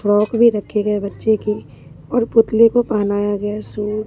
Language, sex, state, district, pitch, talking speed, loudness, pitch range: Hindi, female, Bihar, Katihar, 210 Hz, 175 wpm, -17 LUFS, 205-225 Hz